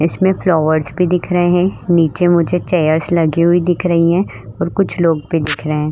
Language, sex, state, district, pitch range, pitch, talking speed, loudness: Hindi, female, Uttar Pradesh, Budaun, 155-180 Hz, 170 Hz, 245 wpm, -15 LUFS